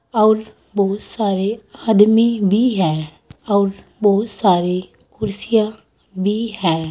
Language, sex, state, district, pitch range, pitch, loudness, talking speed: Hindi, female, Uttar Pradesh, Saharanpur, 195-220 Hz, 205 Hz, -18 LUFS, 95 wpm